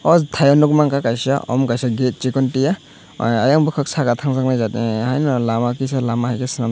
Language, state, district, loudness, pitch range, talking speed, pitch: Kokborok, Tripura, Dhalai, -18 LUFS, 120-140 Hz, 195 wpm, 130 Hz